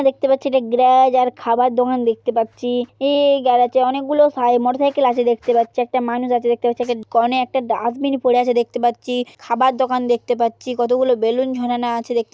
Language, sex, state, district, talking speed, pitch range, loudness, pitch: Bengali, female, West Bengal, Jhargram, 205 wpm, 240-260 Hz, -18 LUFS, 245 Hz